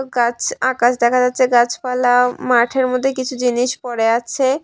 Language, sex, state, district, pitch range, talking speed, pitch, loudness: Bengali, female, Tripura, West Tripura, 240-260 Hz, 140 wpm, 250 Hz, -16 LUFS